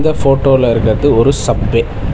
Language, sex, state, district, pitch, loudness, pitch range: Tamil, male, Tamil Nadu, Chennai, 130 Hz, -12 LUFS, 115-140 Hz